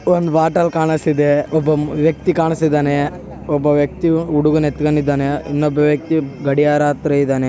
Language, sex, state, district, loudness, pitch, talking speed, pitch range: Kannada, male, Karnataka, Bellary, -16 LUFS, 150 Hz, 130 wpm, 145-160 Hz